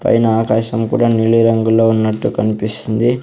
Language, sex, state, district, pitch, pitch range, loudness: Telugu, male, Andhra Pradesh, Sri Satya Sai, 115 Hz, 110-115 Hz, -14 LUFS